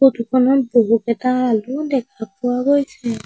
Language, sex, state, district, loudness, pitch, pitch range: Assamese, female, Assam, Sonitpur, -18 LUFS, 250 Hz, 230-270 Hz